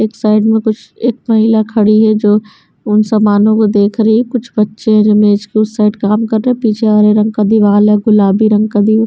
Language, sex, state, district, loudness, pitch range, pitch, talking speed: Hindi, female, Bihar, West Champaran, -11 LUFS, 210-220 Hz, 215 Hz, 250 wpm